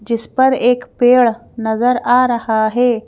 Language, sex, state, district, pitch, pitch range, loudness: Hindi, female, Madhya Pradesh, Bhopal, 245 Hz, 225-250 Hz, -14 LUFS